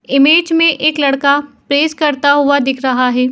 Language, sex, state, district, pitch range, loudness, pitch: Hindi, female, Uttar Pradesh, Etah, 275-300 Hz, -12 LUFS, 285 Hz